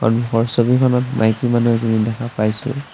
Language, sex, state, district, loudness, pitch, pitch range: Assamese, male, Assam, Sonitpur, -17 LUFS, 120 Hz, 110-125 Hz